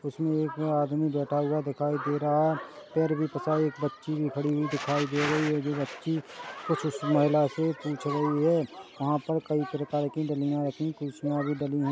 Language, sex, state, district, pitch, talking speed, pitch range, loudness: Hindi, male, Chhattisgarh, Korba, 150 Hz, 195 wpm, 145-155 Hz, -29 LUFS